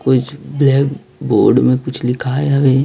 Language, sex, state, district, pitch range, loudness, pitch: Hindi, female, Chhattisgarh, Raipur, 125-140 Hz, -15 LUFS, 135 Hz